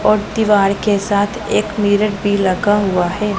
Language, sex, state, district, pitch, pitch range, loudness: Hindi, female, Punjab, Pathankot, 205 Hz, 200-210 Hz, -15 LUFS